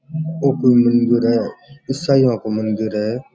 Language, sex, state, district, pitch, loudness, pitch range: Rajasthani, male, Rajasthan, Churu, 125 Hz, -17 LUFS, 115-140 Hz